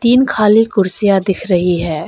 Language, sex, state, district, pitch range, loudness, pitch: Hindi, female, Arunachal Pradesh, Longding, 180-225 Hz, -13 LUFS, 200 Hz